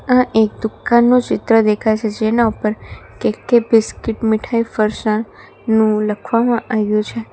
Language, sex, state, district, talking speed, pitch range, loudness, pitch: Gujarati, female, Gujarat, Valsad, 140 wpm, 215-230 Hz, -16 LUFS, 220 Hz